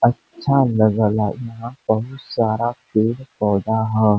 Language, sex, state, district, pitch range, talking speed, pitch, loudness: Bhojpuri, male, Uttar Pradesh, Varanasi, 110-120 Hz, 130 wpm, 110 Hz, -20 LUFS